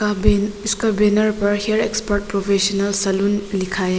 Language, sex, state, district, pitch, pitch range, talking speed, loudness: Hindi, female, Arunachal Pradesh, Papum Pare, 205 Hz, 200-210 Hz, 165 wpm, -19 LUFS